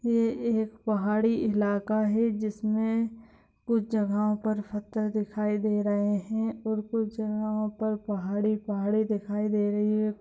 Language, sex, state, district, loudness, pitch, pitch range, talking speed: Hindi, female, Bihar, Gopalganj, -28 LUFS, 215 Hz, 210-220 Hz, 135 wpm